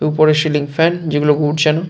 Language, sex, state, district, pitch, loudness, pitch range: Bengali, male, West Bengal, Jalpaiguri, 155 Hz, -15 LUFS, 150-160 Hz